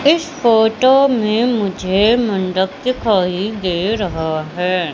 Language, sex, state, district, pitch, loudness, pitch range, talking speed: Hindi, female, Madhya Pradesh, Katni, 210 Hz, -16 LUFS, 185-240 Hz, 110 wpm